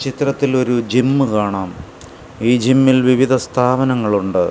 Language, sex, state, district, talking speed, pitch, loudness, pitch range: Malayalam, male, Kerala, Kasaragod, 120 wpm, 125 Hz, -15 LUFS, 105-130 Hz